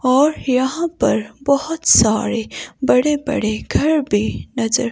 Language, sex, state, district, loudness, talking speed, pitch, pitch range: Hindi, female, Himachal Pradesh, Shimla, -17 LUFS, 120 wpm, 265 Hz, 235-295 Hz